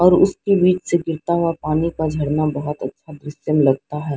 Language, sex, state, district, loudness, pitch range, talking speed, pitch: Hindi, female, Odisha, Sambalpur, -19 LUFS, 150-170 Hz, 200 wpm, 155 Hz